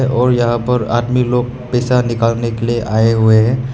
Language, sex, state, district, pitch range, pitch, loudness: Hindi, male, Meghalaya, West Garo Hills, 115-125 Hz, 120 Hz, -14 LUFS